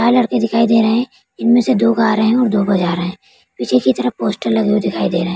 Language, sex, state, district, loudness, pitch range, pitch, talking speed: Hindi, female, Bihar, Araria, -15 LUFS, 175-230 Hz, 220 Hz, 300 wpm